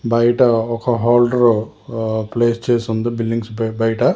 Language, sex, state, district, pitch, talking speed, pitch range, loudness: Telugu, male, Telangana, Hyderabad, 115 Hz, 130 wpm, 115-120 Hz, -17 LUFS